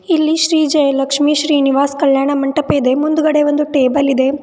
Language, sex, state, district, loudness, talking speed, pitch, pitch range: Kannada, female, Karnataka, Bidar, -14 LUFS, 150 wpm, 290 Hz, 275-305 Hz